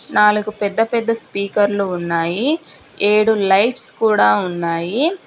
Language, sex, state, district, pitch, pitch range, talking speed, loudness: Telugu, female, Telangana, Hyderabad, 205 Hz, 185-225 Hz, 115 wpm, -17 LUFS